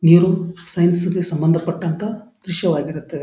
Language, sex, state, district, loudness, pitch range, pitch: Kannada, male, Karnataka, Dharwad, -19 LUFS, 165-180 Hz, 175 Hz